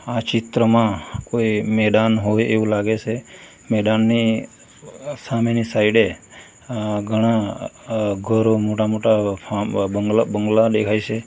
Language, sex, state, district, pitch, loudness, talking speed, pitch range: Gujarati, male, Gujarat, Valsad, 110 Hz, -19 LUFS, 100 wpm, 105-115 Hz